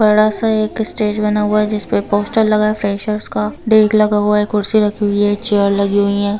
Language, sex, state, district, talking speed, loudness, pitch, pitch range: Hindi, female, Bihar, Sitamarhi, 260 wpm, -15 LUFS, 210 Hz, 205-215 Hz